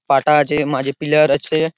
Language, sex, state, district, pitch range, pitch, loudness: Bengali, male, West Bengal, Purulia, 140-150 Hz, 150 Hz, -16 LUFS